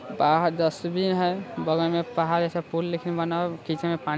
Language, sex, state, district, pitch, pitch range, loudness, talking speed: Hindi, male, Bihar, Sitamarhi, 170 Hz, 165-170 Hz, -25 LUFS, 85 wpm